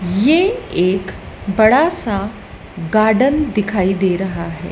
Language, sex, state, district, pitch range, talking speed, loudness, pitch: Hindi, female, Madhya Pradesh, Dhar, 185-250 Hz, 115 wpm, -16 LUFS, 200 Hz